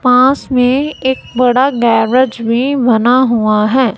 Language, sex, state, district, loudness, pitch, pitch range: Hindi, female, Punjab, Kapurthala, -12 LUFS, 250 Hz, 230-260 Hz